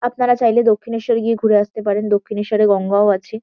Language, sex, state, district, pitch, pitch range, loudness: Bengali, female, West Bengal, Kolkata, 215 Hz, 205-230 Hz, -16 LUFS